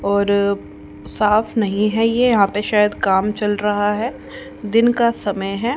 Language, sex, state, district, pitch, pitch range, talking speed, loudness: Hindi, female, Haryana, Rohtak, 210 Hz, 200-225 Hz, 165 wpm, -18 LUFS